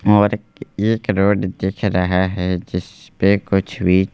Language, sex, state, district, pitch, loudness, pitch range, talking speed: Hindi, male, Madhya Pradesh, Bhopal, 95 Hz, -18 LUFS, 95-105 Hz, 145 wpm